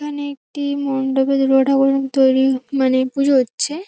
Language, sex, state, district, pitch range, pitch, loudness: Bengali, female, West Bengal, North 24 Parganas, 265-280 Hz, 270 Hz, -17 LUFS